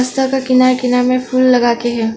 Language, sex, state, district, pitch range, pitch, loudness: Hindi, female, Arunachal Pradesh, Longding, 240-255 Hz, 255 Hz, -13 LUFS